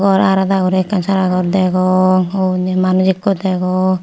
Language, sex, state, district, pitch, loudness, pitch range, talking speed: Chakma, female, Tripura, Unakoti, 185 Hz, -14 LUFS, 185-190 Hz, 180 wpm